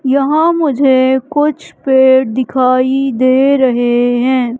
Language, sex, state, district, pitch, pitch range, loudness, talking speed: Hindi, female, Madhya Pradesh, Katni, 260 Hz, 255-275 Hz, -12 LUFS, 105 wpm